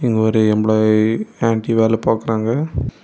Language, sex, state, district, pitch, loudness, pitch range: Tamil, male, Tamil Nadu, Kanyakumari, 110 Hz, -17 LUFS, 110-115 Hz